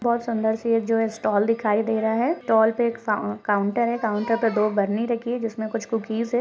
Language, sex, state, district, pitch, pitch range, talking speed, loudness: Hindi, female, Goa, North and South Goa, 225 Hz, 215-230 Hz, 245 wpm, -23 LUFS